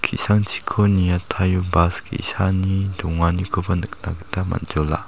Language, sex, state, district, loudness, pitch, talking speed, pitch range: Garo, male, Meghalaya, South Garo Hills, -21 LUFS, 95 Hz, 95 wpm, 90-100 Hz